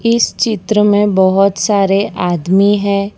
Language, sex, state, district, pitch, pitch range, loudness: Hindi, female, Gujarat, Valsad, 200 Hz, 195-210 Hz, -13 LUFS